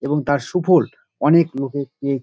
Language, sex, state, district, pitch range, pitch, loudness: Bengali, male, West Bengal, Dakshin Dinajpur, 140-165 Hz, 145 Hz, -19 LUFS